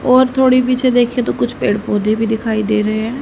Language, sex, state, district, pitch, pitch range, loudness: Hindi, female, Haryana, Charkhi Dadri, 225 Hz, 215-255 Hz, -15 LUFS